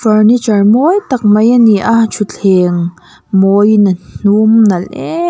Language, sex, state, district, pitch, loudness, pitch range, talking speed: Mizo, female, Mizoram, Aizawl, 210 Hz, -10 LUFS, 195-230 Hz, 145 wpm